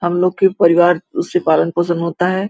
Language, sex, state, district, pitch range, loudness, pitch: Hindi, female, Uttar Pradesh, Gorakhpur, 170-190 Hz, -15 LUFS, 175 Hz